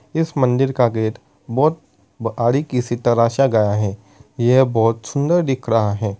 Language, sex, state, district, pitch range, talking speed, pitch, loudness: Hindi, male, Uttar Pradesh, Muzaffarnagar, 110-135 Hz, 155 wpm, 120 Hz, -18 LUFS